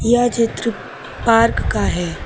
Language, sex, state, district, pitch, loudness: Hindi, female, Uttar Pradesh, Lucknow, 230 Hz, -17 LUFS